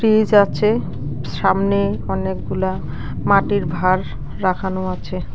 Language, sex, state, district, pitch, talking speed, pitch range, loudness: Bengali, female, West Bengal, Alipurduar, 180 Hz, 80 wpm, 125-190 Hz, -19 LUFS